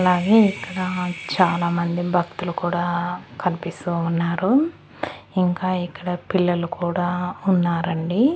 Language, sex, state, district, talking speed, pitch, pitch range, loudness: Telugu, female, Andhra Pradesh, Annamaya, 85 wpm, 175 Hz, 170-185 Hz, -22 LUFS